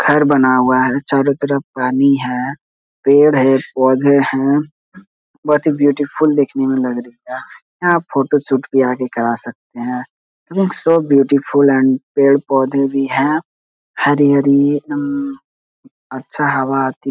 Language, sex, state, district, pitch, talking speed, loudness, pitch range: Hindi, male, Bihar, Jahanabad, 140 Hz, 145 wpm, -15 LUFS, 130-145 Hz